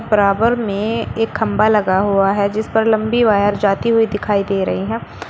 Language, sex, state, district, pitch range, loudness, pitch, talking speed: Hindi, female, Uttar Pradesh, Shamli, 200-225 Hz, -16 LUFS, 210 Hz, 190 wpm